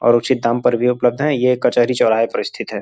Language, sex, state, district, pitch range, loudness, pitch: Hindi, male, Uttar Pradesh, Gorakhpur, 120-125 Hz, -16 LUFS, 125 Hz